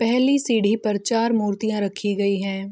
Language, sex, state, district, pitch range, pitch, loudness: Hindi, female, Bihar, Gopalganj, 200-230 Hz, 210 Hz, -21 LUFS